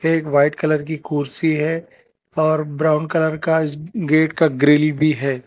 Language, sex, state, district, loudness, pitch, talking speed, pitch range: Hindi, male, Telangana, Hyderabad, -18 LUFS, 155 Hz, 175 wpm, 150-160 Hz